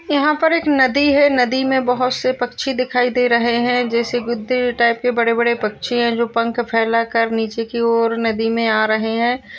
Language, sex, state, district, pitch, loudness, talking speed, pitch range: Hindi, female, Uttar Pradesh, Hamirpur, 240 Hz, -17 LUFS, 215 wpm, 230-255 Hz